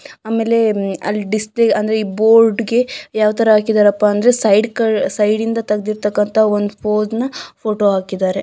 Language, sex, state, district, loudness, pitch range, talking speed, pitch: Kannada, female, Karnataka, Gulbarga, -15 LUFS, 210-225 Hz, 140 wpm, 215 Hz